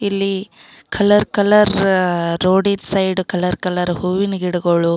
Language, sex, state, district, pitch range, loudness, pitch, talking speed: Kannada, female, Karnataka, Belgaum, 180-200 Hz, -16 LUFS, 190 Hz, 110 wpm